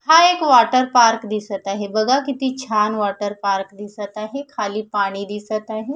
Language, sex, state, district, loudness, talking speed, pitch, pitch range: Marathi, female, Maharashtra, Nagpur, -19 LUFS, 170 wpm, 215 Hz, 205-255 Hz